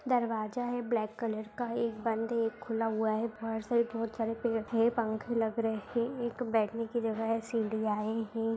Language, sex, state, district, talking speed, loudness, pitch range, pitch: Hindi, female, Bihar, Madhepura, 205 wpm, -33 LUFS, 220-235 Hz, 225 Hz